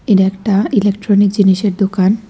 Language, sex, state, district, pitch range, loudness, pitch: Bengali, female, Tripura, West Tripura, 195-205 Hz, -13 LUFS, 200 Hz